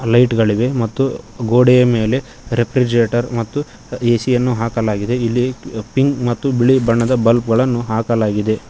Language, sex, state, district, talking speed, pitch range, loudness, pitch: Kannada, male, Karnataka, Koppal, 125 wpm, 115-125 Hz, -16 LUFS, 120 Hz